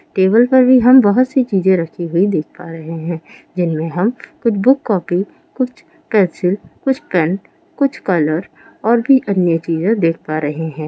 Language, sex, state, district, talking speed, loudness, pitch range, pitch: Hindi, female, Rajasthan, Churu, 175 wpm, -15 LUFS, 165-250 Hz, 190 Hz